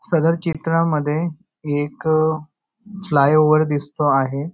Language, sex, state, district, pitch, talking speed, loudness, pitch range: Marathi, male, Maharashtra, Nagpur, 155 Hz, 80 wpm, -19 LUFS, 145-165 Hz